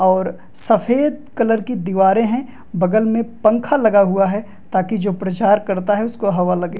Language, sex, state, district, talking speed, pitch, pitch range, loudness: Hindi, male, Bihar, Madhepura, 175 wpm, 210 Hz, 190-230 Hz, -17 LUFS